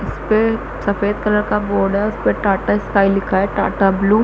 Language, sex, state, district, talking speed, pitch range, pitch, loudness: Hindi, female, Chhattisgarh, Bastar, 200 wpm, 195-210 Hz, 200 Hz, -17 LUFS